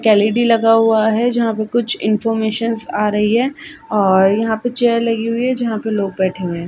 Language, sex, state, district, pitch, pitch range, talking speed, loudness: Hindi, female, Uttar Pradesh, Ghazipur, 225 Hz, 210-235 Hz, 215 wpm, -16 LUFS